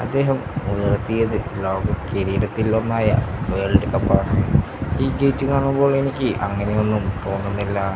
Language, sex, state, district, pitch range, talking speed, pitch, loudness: Malayalam, male, Kerala, Kasaragod, 100-125 Hz, 100 wpm, 105 Hz, -21 LUFS